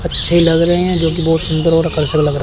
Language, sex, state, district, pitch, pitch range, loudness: Hindi, male, Chandigarh, Chandigarh, 165 Hz, 160-170 Hz, -13 LUFS